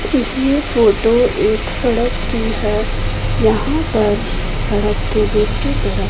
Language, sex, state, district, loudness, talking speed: Hindi, female, Punjab, Pathankot, -16 LUFS, 120 wpm